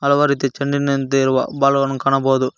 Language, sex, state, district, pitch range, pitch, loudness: Kannada, male, Karnataka, Koppal, 135-140 Hz, 135 Hz, -17 LUFS